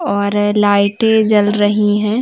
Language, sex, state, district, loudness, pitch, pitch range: Hindi, female, Uttar Pradesh, Varanasi, -13 LUFS, 205 Hz, 205-210 Hz